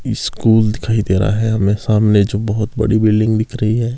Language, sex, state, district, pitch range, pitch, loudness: Hindi, male, Himachal Pradesh, Shimla, 105-110 Hz, 110 Hz, -15 LUFS